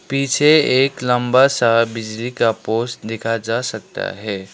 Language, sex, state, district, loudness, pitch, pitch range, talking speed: Hindi, male, Sikkim, Gangtok, -17 LUFS, 115 Hz, 115-130 Hz, 145 wpm